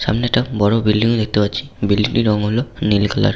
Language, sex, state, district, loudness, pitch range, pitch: Bengali, male, West Bengal, Malda, -17 LUFS, 105-120 Hz, 110 Hz